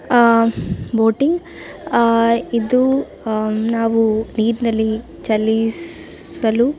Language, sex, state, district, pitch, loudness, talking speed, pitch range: Kannada, female, Karnataka, Dakshina Kannada, 230 Hz, -17 LUFS, 60 wpm, 220-245 Hz